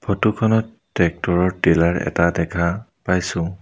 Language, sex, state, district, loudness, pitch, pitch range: Assamese, male, Assam, Sonitpur, -20 LUFS, 90 Hz, 85-100 Hz